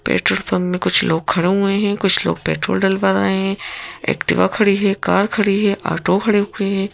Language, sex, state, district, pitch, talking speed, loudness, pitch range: Hindi, female, Madhya Pradesh, Bhopal, 195 Hz, 205 wpm, -17 LUFS, 190-205 Hz